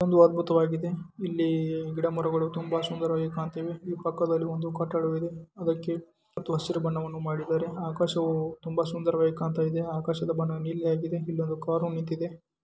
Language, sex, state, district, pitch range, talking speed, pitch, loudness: Kannada, male, Karnataka, Dharwad, 160-170 Hz, 125 wpm, 165 Hz, -29 LUFS